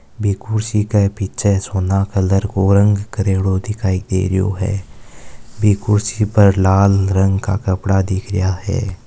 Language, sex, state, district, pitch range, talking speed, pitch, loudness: Marwari, male, Rajasthan, Nagaur, 95-105 Hz, 150 wpm, 100 Hz, -16 LUFS